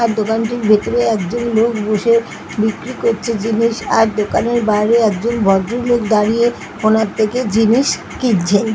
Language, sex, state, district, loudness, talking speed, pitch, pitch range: Bengali, female, West Bengal, Paschim Medinipur, -15 LUFS, 160 wpm, 225 Hz, 215-235 Hz